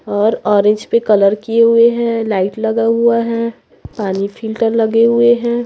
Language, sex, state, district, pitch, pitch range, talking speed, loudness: Hindi, female, Chhattisgarh, Raipur, 225 Hz, 210-230 Hz, 170 wpm, -14 LUFS